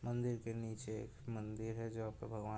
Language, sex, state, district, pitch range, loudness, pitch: Hindi, male, Uttar Pradesh, Budaun, 110-115 Hz, -44 LUFS, 115 Hz